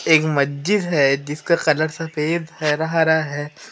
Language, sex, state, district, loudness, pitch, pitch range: Hindi, female, Madhya Pradesh, Umaria, -19 LUFS, 155 Hz, 150-165 Hz